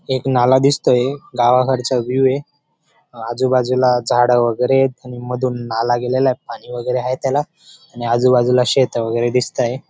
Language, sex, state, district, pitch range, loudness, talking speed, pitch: Marathi, male, Maharashtra, Dhule, 120-130 Hz, -17 LUFS, 145 wpm, 125 Hz